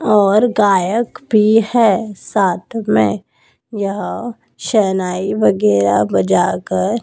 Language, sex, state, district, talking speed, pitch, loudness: Hindi, male, Madhya Pradesh, Dhar, 95 wpm, 200 Hz, -15 LUFS